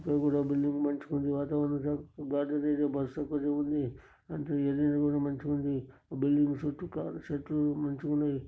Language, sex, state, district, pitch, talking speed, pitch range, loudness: Telugu, male, Andhra Pradesh, Srikakulam, 145 Hz, 115 wpm, 140-150 Hz, -32 LUFS